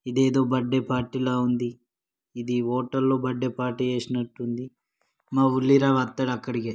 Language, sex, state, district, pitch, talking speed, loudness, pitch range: Telugu, male, Telangana, Karimnagar, 125 Hz, 140 wpm, -25 LUFS, 125-130 Hz